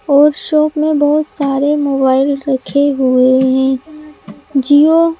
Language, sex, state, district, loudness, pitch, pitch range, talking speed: Hindi, male, Madhya Pradesh, Bhopal, -12 LUFS, 285 Hz, 270-305 Hz, 125 wpm